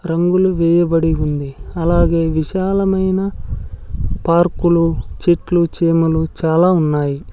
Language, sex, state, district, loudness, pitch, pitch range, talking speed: Telugu, male, Andhra Pradesh, Sri Satya Sai, -16 LUFS, 165 Hz, 150-175 Hz, 90 wpm